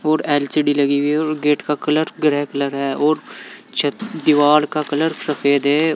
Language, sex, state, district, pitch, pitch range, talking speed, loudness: Hindi, male, Uttar Pradesh, Saharanpur, 150 Hz, 145-155 Hz, 190 wpm, -18 LUFS